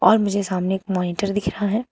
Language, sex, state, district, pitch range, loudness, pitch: Hindi, female, Uttar Pradesh, Shamli, 185-205 Hz, -22 LUFS, 200 Hz